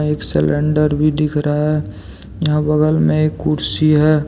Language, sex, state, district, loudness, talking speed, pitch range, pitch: Hindi, male, Jharkhand, Deoghar, -16 LUFS, 170 wpm, 90-150 Hz, 150 Hz